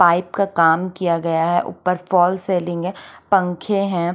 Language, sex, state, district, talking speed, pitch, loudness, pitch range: Hindi, female, Chandigarh, Chandigarh, 175 wpm, 180 Hz, -19 LUFS, 170-185 Hz